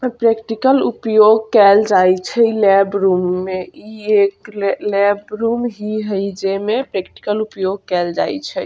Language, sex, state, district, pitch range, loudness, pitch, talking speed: Bajjika, female, Bihar, Vaishali, 195-220 Hz, -16 LUFS, 205 Hz, 160 wpm